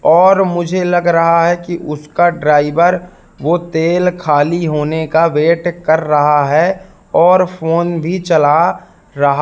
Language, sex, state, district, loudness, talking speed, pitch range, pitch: Hindi, male, Madhya Pradesh, Katni, -13 LUFS, 140 wpm, 155-175 Hz, 170 Hz